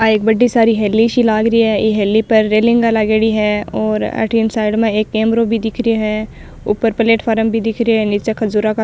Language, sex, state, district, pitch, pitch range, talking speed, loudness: Rajasthani, female, Rajasthan, Nagaur, 220 Hz, 215-225 Hz, 235 wpm, -14 LUFS